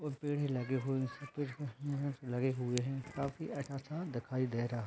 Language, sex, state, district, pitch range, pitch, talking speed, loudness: Hindi, male, Rajasthan, Churu, 130-145 Hz, 135 Hz, 175 wpm, -38 LUFS